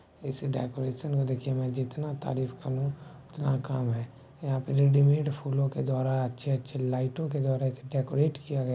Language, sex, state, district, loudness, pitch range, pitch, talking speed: Maithili, male, Bihar, Bhagalpur, -30 LUFS, 130-140 Hz, 135 Hz, 170 wpm